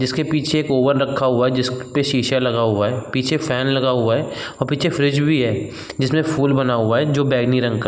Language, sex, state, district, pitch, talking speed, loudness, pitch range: Hindi, male, Uttar Pradesh, Gorakhpur, 135 Hz, 250 wpm, -18 LUFS, 125-145 Hz